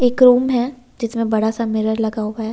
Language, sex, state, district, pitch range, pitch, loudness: Hindi, female, Delhi, New Delhi, 220-250 Hz, 230 Hz, -18 LUFS